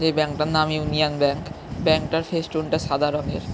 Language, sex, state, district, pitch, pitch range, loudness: Bengali, male, West Bengal, Jhargram, 155 Hz, 150-160 Hz, -23 LUFS